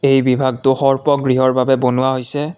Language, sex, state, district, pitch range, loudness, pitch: Assamese, male, Assam, Kamrup Metropolitan, 130-135 Hz, -15 LUFS, 130 Hz